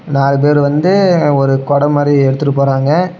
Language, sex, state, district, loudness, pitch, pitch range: Tamil, male, Tamil Nadu, Namakkal, -12 LUFS, 145 Hz, 140-150 Hz